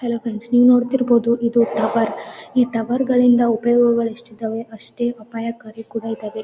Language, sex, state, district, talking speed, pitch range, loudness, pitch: Kannada, female, Karnataka, Gulbarga, 150 wpm, 225-240 Hz, -19 LUFS, 235 Hz